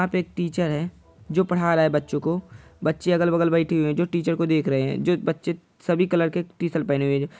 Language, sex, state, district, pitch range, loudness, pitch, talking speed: Hindi, male, Bihar, Saran, 155-175 Hz, -23 LUFS, 170 Hz, 245 wpm